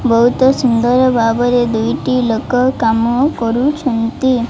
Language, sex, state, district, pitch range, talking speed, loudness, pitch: Odia, female, Odisha, Malkangiri, 230-255 Hz, 95 wpm, -14 LUFS, 245 Hz